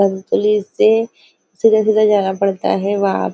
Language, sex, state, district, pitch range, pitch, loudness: Hindi, female, Maharashtra, Nagpur, 190-215 Hz, 200 Hz, -15 LUFS